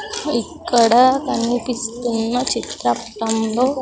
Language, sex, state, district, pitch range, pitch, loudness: Telugu, female, Andhra Pradesh, Sri Satya Sai, 230-260 Hz, 240 Hz, -18 LUFS